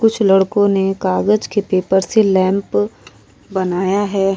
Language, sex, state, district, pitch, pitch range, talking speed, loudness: Hindi, female, Uttar Pradesh, Varanasi, 195 Hz, 185-200 Hz, 135 wpm, -16 LUFS